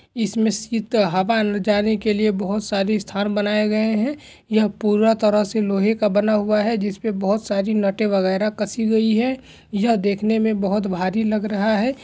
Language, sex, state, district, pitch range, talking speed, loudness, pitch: Hindi, male, Bihar, Gaya, 205-220 Hz, 190 wpm, -20 LUFS, 215 Hz